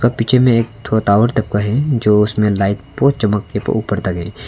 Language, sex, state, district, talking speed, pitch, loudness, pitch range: Hindi, male, Arunachal Pradesh, Longding, 240 wpm, 110 Hz, -15 LUFS, 105-120 Hz